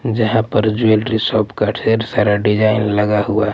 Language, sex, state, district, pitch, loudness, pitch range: Hindi, male, Punjab, Pathankot, 110 Hz, -16 LUFS, 105-110 Hz